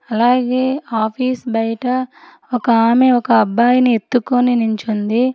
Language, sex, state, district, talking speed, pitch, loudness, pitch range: Telugu, female, Telangana, Hyderabad, 100 wpm, 245 Hz, -16 LUFS, 225-255 Hz